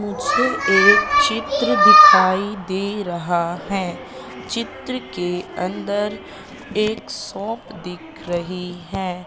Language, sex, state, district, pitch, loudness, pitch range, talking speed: Hindi, female, Madhya Pradesh, Katni, 195 Hz, -18 LUFS, 180-225 Hz, 95 wpm